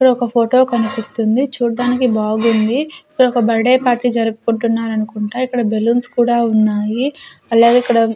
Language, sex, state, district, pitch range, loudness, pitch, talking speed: Telugu, female, Andhra Pradesh, Sri Satya Sai, 225-250 Hz, -15 LUFS, 235 Hz, 140 wpm